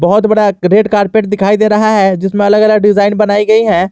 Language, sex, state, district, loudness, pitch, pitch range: Hindi, male, Jharkhand, Garhwa, -10 LUFS, 210 Hz, 200-215 Hz